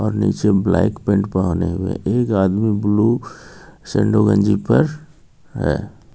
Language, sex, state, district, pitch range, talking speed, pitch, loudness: Hindi, male, Jharkhand, Ranchi, 100-120 Hz, 125 wpm, 105 Hz, -18 LUFS